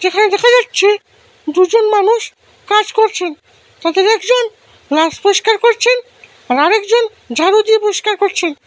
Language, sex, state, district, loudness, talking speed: Bengali, male, Assam, Hailakandi, -13 LUFS, 125 wpm